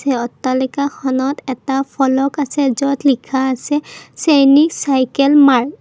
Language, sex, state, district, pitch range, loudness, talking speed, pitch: Assamese, female, Assam, Kamrup Metropolitan, 260-285 Hz, -15 LUFS, 125 wpm, 275 Hz